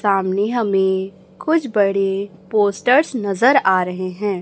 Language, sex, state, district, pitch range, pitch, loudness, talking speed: Hindi, female, Chhattisgarh, Raipur, 190-220 Hz, 200 Hz, -18 LUFS, 120 wpm